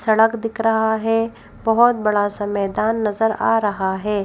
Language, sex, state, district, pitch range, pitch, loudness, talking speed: Hindi, female, Madhya Pradesh, Bhopal, 205-225 Hz, 220 Hz, -19 LUFS, 170 wpm